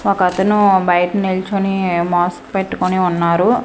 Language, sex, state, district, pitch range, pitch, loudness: Telugu, female, Andhra Pradesh, Manyam, 180-195 Hz, 185 Hz, -16 LUFS